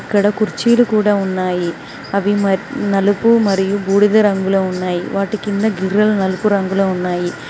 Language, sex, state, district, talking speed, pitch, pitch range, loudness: Telugu, female, Telangana, Mahabubabad, 120 wpm, 200 Hz, 190-210 Hz, -16 LUFS